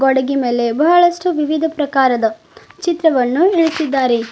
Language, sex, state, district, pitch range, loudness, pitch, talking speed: Kannada, female, Karnataka, Bidar, 255-330 Hz, -15 LUFS, 295 Hz, 95 wpm